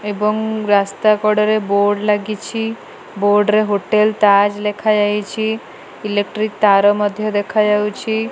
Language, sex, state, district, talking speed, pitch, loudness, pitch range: Odia, female, Odisha, Malkangiri, 100 wpm, 210 Hz, -16 LUFS, 205-215 Hz